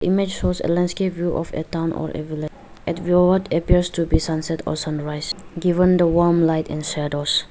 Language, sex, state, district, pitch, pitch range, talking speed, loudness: English, female, Arunachal Pradesh, Lower Dibang Valley, 165 Hz, 155-175 Hz, 210 wpm, -21 LUFS